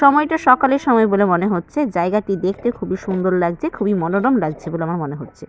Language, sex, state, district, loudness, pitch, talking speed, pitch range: Bengali, female, West Bengal, Malda, -18 LUFS, 200 Hz, 210 wpm, 175-255 Hz